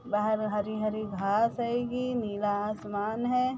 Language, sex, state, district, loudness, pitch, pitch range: Hindi, female, Chhattisgarh, Bilaspur, -30 LUFS, 215 Hz, 205-240 Hz